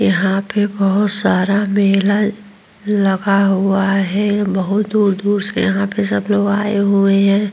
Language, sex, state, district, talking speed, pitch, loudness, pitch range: Hindi, female, Uttar Pradesh, Muzaffarnagar, 145 wpm, 200 Hz, -15 LUFS, 195-205 Hz